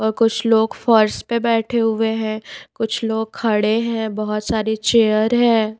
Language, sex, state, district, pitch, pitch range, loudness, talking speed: Hindi, female, Himachal Pradesh, Shimla, 225 Hz, 220-230 Hz, -18 LUFS, 165 wpm